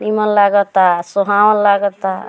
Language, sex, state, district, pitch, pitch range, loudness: Bhojpuri, female, Bihar, Muzaffarpur, 200 Hz, 190-205 Hz, -13 LUFS